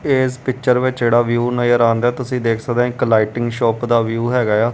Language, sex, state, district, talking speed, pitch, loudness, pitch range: Punjabi, male, Punjab, Kapurthala, 225 wpm, 120 Hz, -17 LUFS, 115-125 Hz